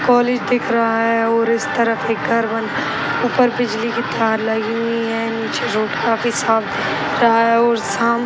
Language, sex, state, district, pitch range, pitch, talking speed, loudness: Hindi, male, Bihar, Sitamarhi, 225-235 Hz, 230 Hz, 190 wpm, -17 LUFS